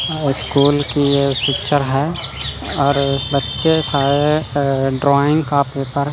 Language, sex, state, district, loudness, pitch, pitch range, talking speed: Hindi, male, Chandigarh, Chandigarh, -17 LUFS, 140 Hz, 135-145 Hz, 125 wpm